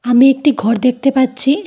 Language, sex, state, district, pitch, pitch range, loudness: Bengali, female, Tripura, Dhalai, 260 Hz, 245-275 Hz, -13 LUFS